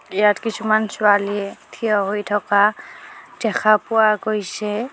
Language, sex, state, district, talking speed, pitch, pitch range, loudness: Assamese, female, Assam, Kamrup Metropolitan, 110 wpm, 210 Hz, 205-215 Hz, -19 LUFS